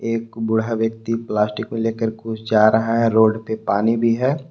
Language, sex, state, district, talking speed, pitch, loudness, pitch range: Hindi, male, Jharkhand, Palamu, 200 wpm, 115 Hz, -19 LUFS, 110-115 Hz